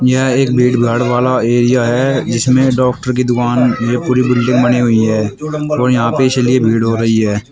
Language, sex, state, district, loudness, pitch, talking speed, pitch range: Hindi, male, Uttar Pradesh, Shamli, -13 LUFS, 125 Hz, 200 wpm, 115-125 Hz